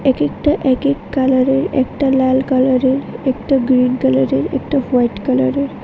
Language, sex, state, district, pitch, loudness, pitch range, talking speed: Bengali, female, Tripura, West Tripura, 260 Hz, -15 LUFS, 255-275 Hz, 125 wpm